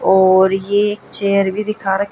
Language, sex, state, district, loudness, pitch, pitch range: Hindi, female, Haryana, Jhajjar, -15 LUFS, 200 Hz, 190-205 Hz